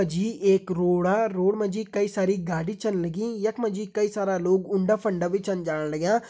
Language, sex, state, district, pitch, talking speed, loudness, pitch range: Hindi, male, Uttarakhand, Uttarkashi, 195 Hz, 240 wpm, -25 LUFS, 185-215 Hz